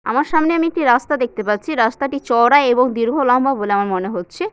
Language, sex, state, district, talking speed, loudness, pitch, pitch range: Bengali, female, West Bengal, Jalpaiguri, 210 wpm, -16 LUFS, 250 Hz, 220-285 Hz